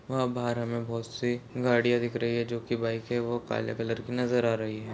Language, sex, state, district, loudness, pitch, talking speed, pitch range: Hindi, male, Chhattisgarh, Balrampur, -30 LUFS, 120 Hz, 240 wpm, 115-120 Hz